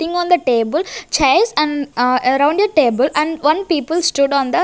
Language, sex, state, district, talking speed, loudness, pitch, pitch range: English, female, Chandigarh, Chandigarh, 220 wpm, -15 LUFS, 300 Hz, 270-335 Hz